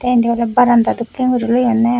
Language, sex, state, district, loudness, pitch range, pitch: Chakma, female, Tripura, West Tripura, -14 LUFS, 235-245 Hz, 240 Hz